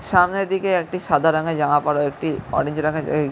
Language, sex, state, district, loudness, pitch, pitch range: Bengali, male, West Bengal, Jhargram, -20 LUFS, 155 Hz, 150-180 Hz